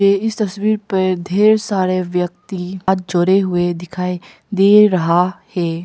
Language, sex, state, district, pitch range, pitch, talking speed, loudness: Hindi, female, Arunachal Pradesh, Papum Pare, 180-200 Hz, 185 Hz, 135 wpm, -16 LUFS